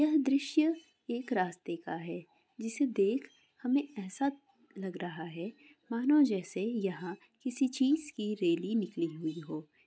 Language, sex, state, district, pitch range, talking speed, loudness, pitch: Hindi, female, Andhra Pradesh, Guntur, 180-275 Hz, 140 wpm, -34 LUFS, 225 Hz